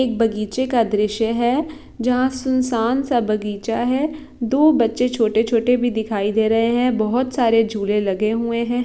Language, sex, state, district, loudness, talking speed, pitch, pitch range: Hindi, female, Bihar, Saran, -19 LUFS, 165 wpm, 235 Hz, 220-250 Hz